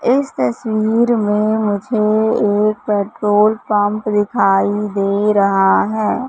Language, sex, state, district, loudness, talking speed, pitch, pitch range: Hindi, female, Madhya Pradesh, Katni, -15 LUFS, 105 wpm, 210 Hz, 205-220 Hz